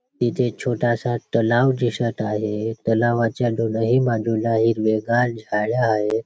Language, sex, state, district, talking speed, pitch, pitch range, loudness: Marathi, male, Maharashtra, Chandrapur, 105 wpm, 115 Hz, 110-120 Hz, -21 LUFS